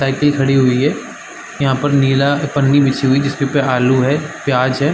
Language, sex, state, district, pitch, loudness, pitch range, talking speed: Hindi, male, Chhattisgarh, Bastar, 140 Hz, -15 LUFS, 135-145 Hz, 180 wpm